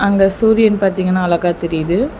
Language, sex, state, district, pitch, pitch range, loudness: Tamil, female, Tamil Nadu, Chennai, 190 Hz, 175-205 Hz, -14 LUFS